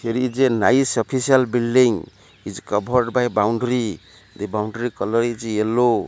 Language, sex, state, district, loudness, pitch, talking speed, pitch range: English, male, Odisha, Malkangiri, -20 LUFS, 120 Hz, 150 wpm, 110-125 Hz